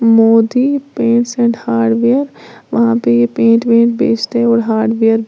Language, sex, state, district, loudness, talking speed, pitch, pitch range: Hindi, female, Uttar Pradesh, Lalitpur, -12 LUFS, 150 wpm, 230 Hz, 225-235 Hz